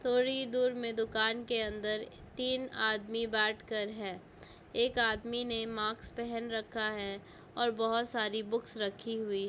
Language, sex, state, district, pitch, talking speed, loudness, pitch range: Hindi, female, Bihar, Begusarai, 225 Hz, 160 wpm, -33 LUFS, 215-235 Hz